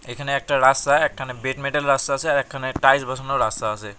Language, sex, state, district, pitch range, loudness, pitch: Bengali, male, West Bengal, Cooch Behar, 130-140 Hz, -21 LUFS, 135 Hz